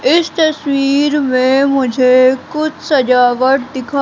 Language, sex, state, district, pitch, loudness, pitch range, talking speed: Hindi, female, Madhya Pradesh, Katni, 275 Hz, -13 LUFS, 255-295 Hz, 105 wpm